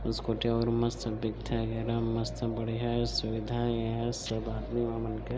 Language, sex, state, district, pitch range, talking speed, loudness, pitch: Chhattisgarhi, male, Chhattisgarh, Bilaspur, 115-120 Hz, 180 wpm, -32 LUFS, 115 Hz